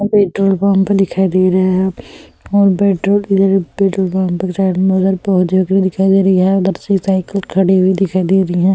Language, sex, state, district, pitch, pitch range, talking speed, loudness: Hindi, female, Uttar Pradesh, Etah, 190 Hz, 185-195 Hz, 220 wpm, -13 LUFS